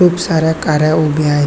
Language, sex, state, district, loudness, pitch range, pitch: Marathi, male, Maharashtra, Chandrapur, -14 LUFS, 150-160 Hz, 155 Hz